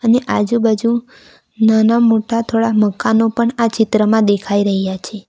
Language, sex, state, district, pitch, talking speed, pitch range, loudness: Gujarati, female, Gujarat, Valsad, 225 Hz, 135 wpm, 210-230 Hz, -15 LUFS